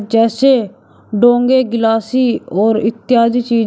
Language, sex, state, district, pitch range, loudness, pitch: Hindi, male, Uttar Pradesh, Shamli, 225-245 Hz, -13 LUFS, 230 Hz